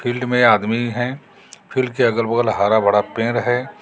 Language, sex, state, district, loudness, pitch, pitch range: Hindi, male, Jharkhand, Garhwa, -18 LUFS, 120 Hz, 115-125 Hz